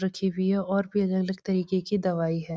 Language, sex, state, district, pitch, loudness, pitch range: Hindi, female, Uttarakhand, Uttarkashi, 190 Hz, -27 LUFS, 185-195 Hz